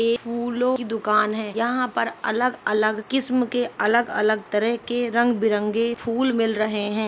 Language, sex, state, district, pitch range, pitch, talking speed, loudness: Hindi, female, Maharashtra, Aurangabad, 215-240 Hz, 230 Hz, 185 wpm, -22 LUFS